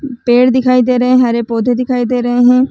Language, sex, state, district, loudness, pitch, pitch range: Chhattisgarhi, female, Chhattisgarh, Raigarh, -12 LUFS, 250 Hz, 245-255 Hz